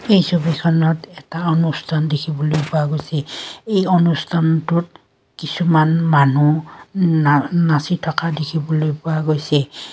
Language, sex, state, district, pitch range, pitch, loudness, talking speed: Assamese, female, Assam, Kamrup Metropolitan, 150-170 Hz, 160 Hz, -17 LUFS, 105 wpm